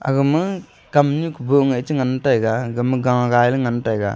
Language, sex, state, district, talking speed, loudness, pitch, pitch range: Wancho, male, Arunachal Pradesh, Longding, 145 wpm, -18 LUFS, 130 Hz, 120-145 Hz